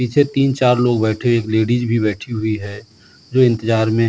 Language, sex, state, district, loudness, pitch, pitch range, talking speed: Hindi, male, Bihar, Samastipur, -17 LUFS, 115 Hz, 110-125 Hz, 205 wpm